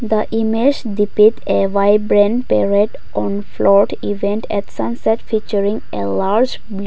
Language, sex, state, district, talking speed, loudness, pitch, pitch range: English, female, Nagaland, Kohima, 115 wpm, -16 LUFS, 205 Hz, 200-220 Hz